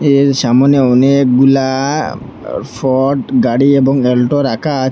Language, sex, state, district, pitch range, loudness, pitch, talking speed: Bengali, male, Assam, Hailakandi, 130-140 Hz, -12 LUFS, 135 Hz, 120 wpm